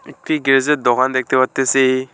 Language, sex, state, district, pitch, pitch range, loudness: Bengali, male, West Bengal, Alipurduar, 130 Hz, 130-135 Hz, -16 LUFS